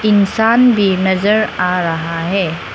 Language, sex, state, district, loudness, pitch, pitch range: Hindi, female, Arunachal Pradesh, Lower Dibang Valley, -14 LUFS, 195 Hz, 180-215 Hz